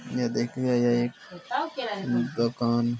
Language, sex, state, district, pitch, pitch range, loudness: Hindi, male, Uttar Pradesh, Jalaun, 120 Hz, 120-160 Hz, -27 LUFS